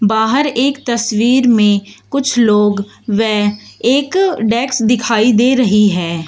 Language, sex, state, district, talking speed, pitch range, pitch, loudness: Hindi, female, Uttar Pradesh, Shamli, 125 wpm, 210-255 Hz, 230 Hz, -13 LUFS